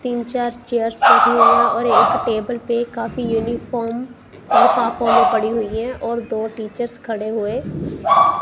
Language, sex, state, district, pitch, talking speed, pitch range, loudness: Hindi, female, Punjab, Kapurthala, 235 Hz, 155 wpm, 225-245 Hz, -18 LUFS